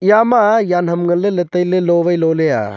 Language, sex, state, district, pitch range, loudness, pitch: Wancho, male, Arunachal Pradesh, Longding, 170-195 Hz, -14 LUFS, 175 Hz